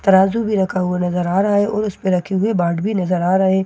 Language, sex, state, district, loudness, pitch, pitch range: Hindi, female, Bihar, Katihar, -18 LUFS, 190 Hz, 180-205 Hz